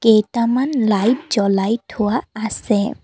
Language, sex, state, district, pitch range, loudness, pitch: Assamese, female, Assam, Kamrup Metropolitan, 210-240 Hz, -18 LUFS, 225 Hz